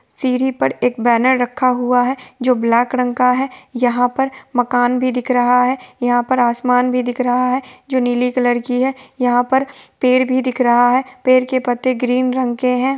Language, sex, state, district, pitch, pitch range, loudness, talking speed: Hindi, female, Bihar, Sitamarhi, 250 Hz, 245-255 Hz, -16 LUFS, 210 wpm